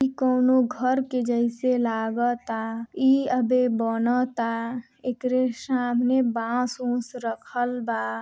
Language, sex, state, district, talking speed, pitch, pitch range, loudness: Hindi, female, Uttar Pradesh, Deoria, 95 wpm, 245 Hz, 230-255 Hz, -24 LUFS